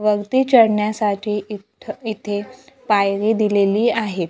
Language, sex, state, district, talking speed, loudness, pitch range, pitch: Marathi, female, Maharashtra, Gondia, 100 wpm, -18 LUFS, 205-225 Hz, 210 Hz